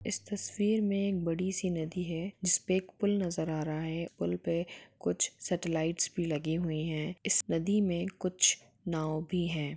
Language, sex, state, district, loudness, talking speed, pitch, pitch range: Hindi, female, Jharkhand, Jamtara, -32 LUFS, 185 wpm, 170 Hz, 160-185 Hz